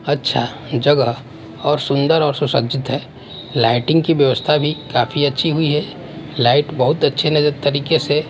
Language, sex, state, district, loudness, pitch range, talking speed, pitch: Hindi, male, Himachal Pradesh, Shimla, -17 LUFS, 135-150 Hz, 150 wpm, 145 Hz